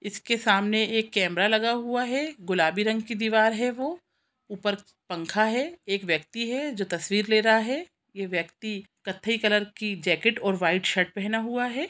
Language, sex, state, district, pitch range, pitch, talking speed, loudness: Hindi, female, Chhattisgarh, Sukma, 195-235 Hz, 215 Hz, 185 wpm, -25 LUFS